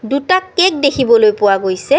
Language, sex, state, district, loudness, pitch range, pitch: Assamese, female, Assam, Kamrup Metropolitan, -13 LUFS, 210-340 Hz, 270 Hz